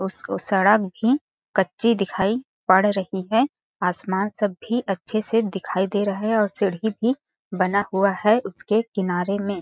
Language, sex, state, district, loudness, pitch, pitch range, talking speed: Hindi, female, Chhattisgarh, Balrampur, -22 LUFS, 200 Hz, 190-220 Hz, 170 wpm